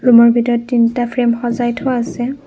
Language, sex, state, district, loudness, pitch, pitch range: Assamese, female, Assam, Kamrup Metropolitan, -15 LUFS, 240 Hz, 235-245 Hz